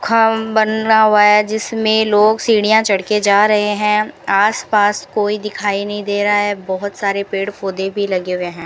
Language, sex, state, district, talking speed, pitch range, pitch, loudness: Hindi, female, Rajasthan, Bikaner, 185 wpm, 200-215 Hz, 210 Hz, -15 LUFS